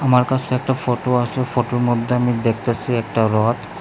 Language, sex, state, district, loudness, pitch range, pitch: Bengali, male, Tripura, West Tripura, -19 LUFS, 115-125 Hz, 120 Hz